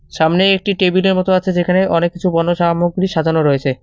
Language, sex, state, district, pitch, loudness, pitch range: Bengali, male, West Bengal, Cooch Behar, 175 Hz, -15 LUFS, 165-185 Hz